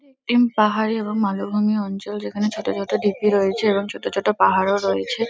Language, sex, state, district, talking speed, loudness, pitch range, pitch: Bengali, female, West Bengal, Kolkata, 160 wpm, -21 LUFS, 200-215 Hz, 210 Hz